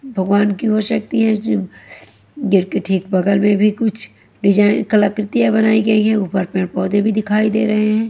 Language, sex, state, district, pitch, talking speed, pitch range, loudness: Hindi, female, Haryana, Jhajjar, 205 Hz, 180 wpm, 190-220 Hz, -16 LUFS